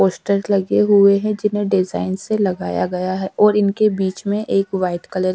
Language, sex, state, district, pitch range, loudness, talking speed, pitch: Hindi, female, Haryana, Charkhi Dadri, 185-205 Hz, -18 LUFS, 200 wpm, 195 Hz